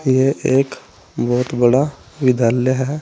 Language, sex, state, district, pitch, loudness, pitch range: Hindi, male, Uttar Pradesh, Saharanpur, 130 Hz, -17 LUFS, 125-135 Hz